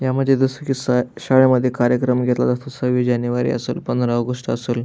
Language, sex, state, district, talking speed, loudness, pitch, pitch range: Marathi, male, Maharashtra, Aurangabad, 195 wpm, -19 LUFS, 125 Hz, 125-130 Hz